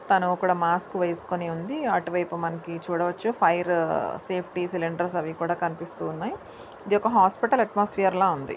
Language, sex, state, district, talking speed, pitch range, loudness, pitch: Telugu, female, Andhra Pradesh, Anantapur, 135 wpm, 170-190 Hz, -26 LUFS, 175 Hz